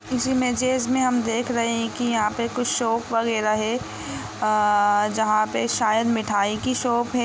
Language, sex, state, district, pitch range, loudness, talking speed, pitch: Hindi, female, Jharkhand, Sahebganj, 215-245 Hz, -22 LUFS, 180 wpm, 230 Hz